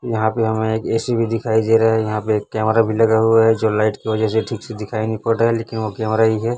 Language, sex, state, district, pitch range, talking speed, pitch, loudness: Hindi, male, Chhattisgarh, Raipur, 110-115 Hz, 310 wpm, 110 Hz, -18 LUFS